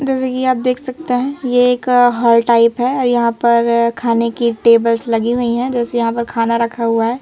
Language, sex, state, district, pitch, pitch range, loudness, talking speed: Hindi, female, Madhya Pradesh, Bhopal, 235 Hz, 230-250 Hz, -15 LUFS, 215 wpm